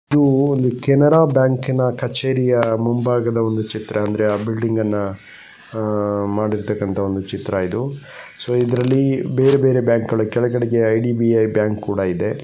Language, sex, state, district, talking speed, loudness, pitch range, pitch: Kannada, male, Karnataka, Gulbarga, 140 wpm, -18 LUFS, 105-130 Hz, 115 Hz